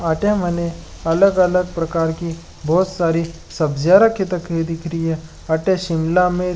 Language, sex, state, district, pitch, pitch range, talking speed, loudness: Marwari, male, Rajasthan, Nagaur, 170 Hz, 165-180 Hz, 165 wpm, -18 LUFS